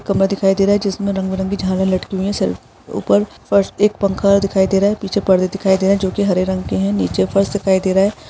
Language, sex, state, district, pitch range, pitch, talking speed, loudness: Hindi, female, Jharkhand, Sahebganj, 185-200 Hz, 195 Hz, 280 wpm, -16 LUFS